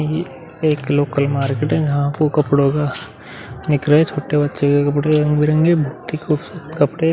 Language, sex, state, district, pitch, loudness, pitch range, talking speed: Hindi, male, Bihar, Vaishali, 150 Hz, -17 LUFS, 145-155 Hz, 160 wpm